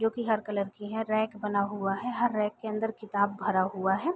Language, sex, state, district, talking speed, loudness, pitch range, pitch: Hindi, female, Uttar Pradesh, Gorakhpur, 245 wpm, -30 LUFS, 200-225 Hz, 210 Hz